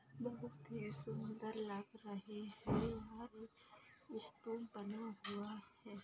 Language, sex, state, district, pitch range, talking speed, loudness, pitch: Hindi, female, Maharashtra, Pune, 200-220 Hz, 120 wpm, -48 LUFS, 210 Hz